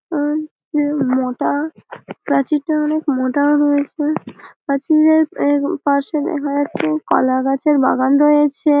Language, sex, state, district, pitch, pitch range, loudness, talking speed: Bengali, female, West Bengal, Malda, 290 Hz, 280-300 Hz, -17 LUFS, 110 wpm